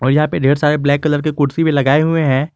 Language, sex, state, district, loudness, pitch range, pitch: Hindi, male, Jharkhand, Garhwa, -15 LUFS, 140-155 Hz, 150 Hz